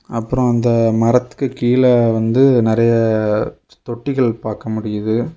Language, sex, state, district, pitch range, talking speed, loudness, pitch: Tamil, male, Tamil Nadu, Kanyakumari, 110-125 Hz, 100 wpm, -16 LUFS, 115 Hz